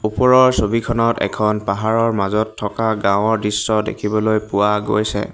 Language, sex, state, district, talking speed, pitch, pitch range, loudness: Assamese, male, Assam, Hailakandi, 125 wpm, 110 Hz, 105-110 Hz, -17 LUFS